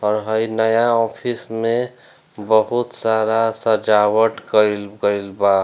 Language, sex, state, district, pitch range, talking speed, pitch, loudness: Bhojpuri, male, Bihar, Gopalganj, 105-115 Hz, 115 wpm, 110 Hz, -18 LUFS